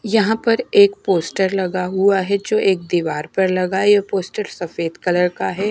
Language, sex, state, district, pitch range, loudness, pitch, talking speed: Hindi, female, Himachal Pradesh, Shimla, 180-205 Hz, -18 LUFS, 190 Hz, 190 wpm